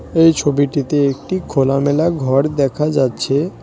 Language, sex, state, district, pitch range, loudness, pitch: Bengali, male, West Bengal, Cooch Behar, 135-155 Hz, -16 LUFS, 140 Hz